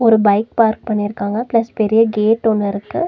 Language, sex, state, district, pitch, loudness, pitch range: Tamil, female, Tamil Nadu, Nilgiris, 220 Hz, -16 LUFS, 210-230 Hz